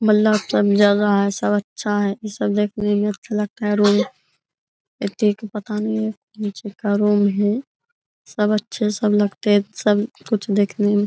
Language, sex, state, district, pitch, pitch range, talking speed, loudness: Hindi, female, Bihar, Araria, 210 Hz, 205-215 Hz, 150 wpm, -20 LUFS